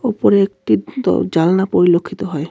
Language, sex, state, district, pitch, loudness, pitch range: Bengali, male, West Bengal, Cooch Behar, 175 Hz, -16 LUFS, 140-195 Hz